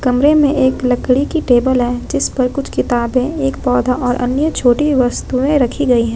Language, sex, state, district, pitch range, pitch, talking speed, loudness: Hindi, female, Jharkhand, Ranchi, 245-275 Hz, 255 Hz, 185 wpm, -15 LUFS